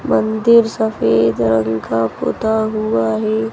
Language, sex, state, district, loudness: Hindi, male, Madhya Pradesh, Bhopal, -16 LUFS